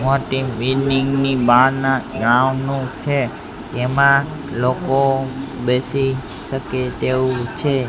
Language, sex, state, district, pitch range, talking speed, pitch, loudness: Gujarati, male, Gujarat, Gandhinagar, 125-135 Hz, 100 wpm, 135 Hz, -18 LUFS